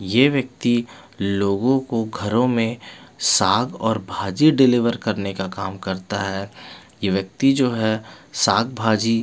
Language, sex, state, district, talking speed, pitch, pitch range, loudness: Hindi, male, Bihar, Patna, 130 wpm, 110 Hz, 100-125 Hz, -20 LUFS